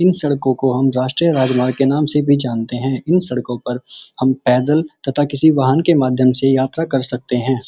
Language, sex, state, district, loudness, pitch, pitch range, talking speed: Hindi, male, Uttar Pradesh, Muzaffarnagar, -16 LUFS, 130 Hz, 125-145 Hz, 210 wpm